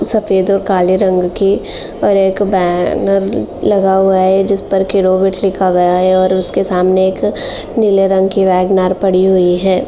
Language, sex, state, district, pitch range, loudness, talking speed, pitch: Hindi, female, Uttar Pradesh, Jalaun, 185-195 Hz, -12 LUFS, 170 wpm, 190 Hz